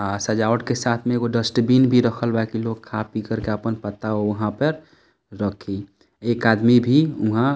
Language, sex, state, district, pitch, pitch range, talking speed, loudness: Bhojpuri, male, Bihar, East Champaran, 115 Hz, 110-120 Hz, 205 wpm, -21 LUFS